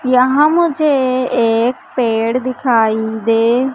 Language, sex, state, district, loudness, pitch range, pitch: Hindi, female, Madhya Pradesh, Umaria, -14 LUFS, 230-265 Hz, 250 Hz